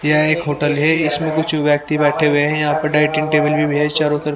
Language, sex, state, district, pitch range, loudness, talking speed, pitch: Hindi, male, Haryana, Rohtak, 150-155 Hz, -16 LUFS, 250 wpm, 150 Hz